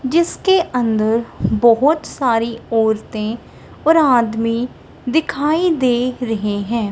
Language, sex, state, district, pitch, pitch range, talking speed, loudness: Hindi, female, Punjab, Kapurthala, 240 Hz, 225-295 Hz, 95 wpm, -17 LUFS